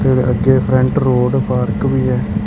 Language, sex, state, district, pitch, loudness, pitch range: Punjabi, male, Karnataka, Bangalore, 125 Hz, -15 LUFS, 105-130 Hz